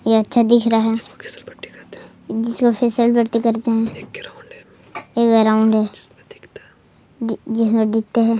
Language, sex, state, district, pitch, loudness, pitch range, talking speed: Hindi, male, Chhattisgarh, Sarguja, 230 Hz, -17 LUFS, 225-235 Hz, 105 wpm